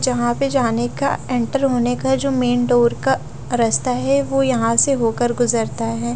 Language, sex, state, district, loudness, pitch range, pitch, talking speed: Hindi, female, Bihar, Katihar, -18 LUFS, 235-265 Hz, 245 Hz, 185 wpm